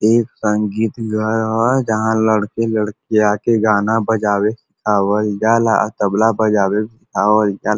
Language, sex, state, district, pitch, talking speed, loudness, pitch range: Bhojpuri, male, Uttar Pradesh, Varanasi, 110 Hz, 125 wpm, -16 LUFS, 105-110 Hz